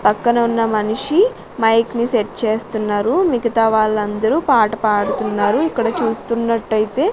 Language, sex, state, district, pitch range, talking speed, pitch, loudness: Telugu, female, Andhra Pradesh, Sri Satya Sai, 215-235 Hz, 110 wpm, 225 Hz, -17 LUFS